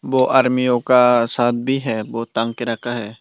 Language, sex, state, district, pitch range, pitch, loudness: Hindi, male, Tripura, Dhalai, 115-125 Hz, 120 Hz, -18 LUFS